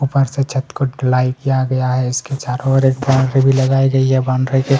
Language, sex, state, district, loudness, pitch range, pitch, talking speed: Hindi, male, Chhattisgarh, Kabirdham, -16 LUFS, 130-135 Hz, 135 Hz, 235 wpm